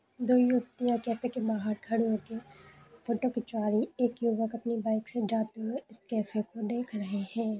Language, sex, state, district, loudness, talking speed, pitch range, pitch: Hindi, female, Bihar, East Champaran, -31 LUFS, 160 wpm, 220-240 Hz, 230 Hz